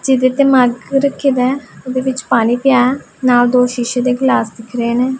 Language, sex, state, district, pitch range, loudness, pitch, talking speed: Punjabi, female, Punjab, Pathankot, 245-265 Hz, -14 LUFS, 255 Hz, 160 wpm